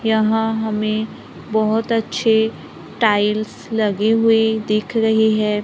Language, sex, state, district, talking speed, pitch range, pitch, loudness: Hindi, female, Maharashtra, Gondia, 105 wpm, 215-225 Hz, 220 Hz, -18 LUFS